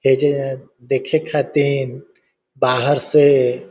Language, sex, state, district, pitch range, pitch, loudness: Hindi, male, Bihar, Vaishali, 130-145 Hz, 135 Hz, -17 LUFS